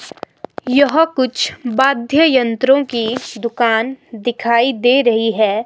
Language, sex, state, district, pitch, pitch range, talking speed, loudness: Hindi, female, Himachal Pradesh, Shimla, 245 Hz, 230-270 Hz, 105 wpm, -15 LUFS